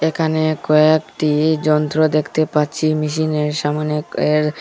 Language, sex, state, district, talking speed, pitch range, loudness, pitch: Bengali, male, Assam, Hailakandi, 105 wpm, 150-155 Hz, -17 LUFS, 155 Hz